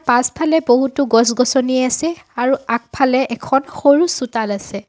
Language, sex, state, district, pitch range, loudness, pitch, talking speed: Assamese, female, Assam, Sonitpur, 240-280 Hz, -16 LUFS, 255 Hz, 125 wpm